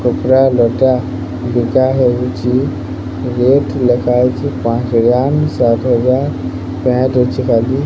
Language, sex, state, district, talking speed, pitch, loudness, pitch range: Odia, male, Odisha, Sambalpur, 100 wpm, 125 Hz, -14 LUFS, 120-130 Hz